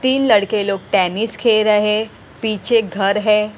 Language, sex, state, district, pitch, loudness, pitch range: Hindi, female, Punjab, Pathankot, 210 Hz, -16 LUFS, 200-225 Hz